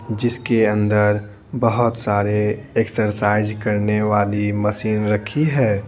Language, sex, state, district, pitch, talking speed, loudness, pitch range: Hindi, male, Bihar, Patna, 105 Hz, 100 wpm, -19 LUFS, 105-115 Hz